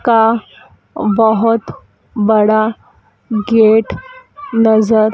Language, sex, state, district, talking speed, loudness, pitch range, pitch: Hindi, female, Madhya Pradesh, Dhar, 60 wpm, -13 LUFS, 215-230 Hz, 220 Hz